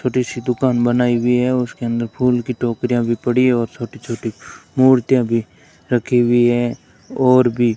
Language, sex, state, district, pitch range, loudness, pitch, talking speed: Hindi, male, Rajasthan, Bikaner, 120-125 Hz, -17 LUFS, 120 Hz, 195 wpm